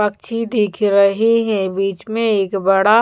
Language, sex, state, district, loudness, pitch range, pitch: Hindi, female, Bihar, Patna, -16 LUFS, 195-225 Hz, 210 Hz